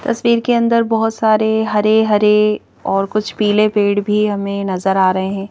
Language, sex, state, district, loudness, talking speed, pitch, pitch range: Hindi, female, Madhya Pradesh, Bhopal, -15 LUFS, 175 wpm, 210 Hz, 200-220 Hz